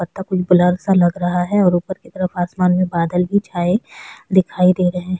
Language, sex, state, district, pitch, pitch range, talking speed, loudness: Hindi, female, Chhattisgarh, Sukma, 180 Hz, 180-190 Hz, 175 wpm, -17 LUFS